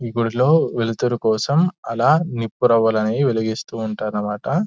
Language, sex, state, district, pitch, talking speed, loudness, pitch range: Telugu, male, Telangana, Nalgonda, 115 Hz, 115 wpm, -19 LUFS, 110-135 Hz